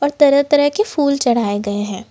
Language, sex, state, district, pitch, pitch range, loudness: Hindi, female, Jharkhand, Ranchi, 280 Hz, 205-290 Hz, -16 LUFS